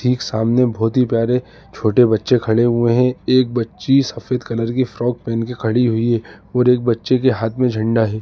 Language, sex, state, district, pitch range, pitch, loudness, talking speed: Hindi, male, Uttar Pradesh, Lalitpur, 115-125 Hz, 120 Hz, -17 LUFS, 210 wpm